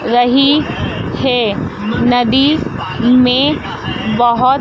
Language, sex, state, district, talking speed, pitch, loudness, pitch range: Hindi, female, Madhya Pradesh, Dhar, 65 wpm, 245 Hz, -13 LUFS, 240-265 Hz